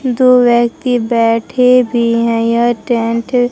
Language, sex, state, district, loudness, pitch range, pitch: Hindi, female, Bihar, Katihar, -12 LUFS, 230-250 Hz, 240 Hz